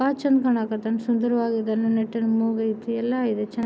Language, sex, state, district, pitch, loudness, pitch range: Kannada, female, Karnataka, Belgaum, 230 Hz, -23 LUFS, 225-235 Hz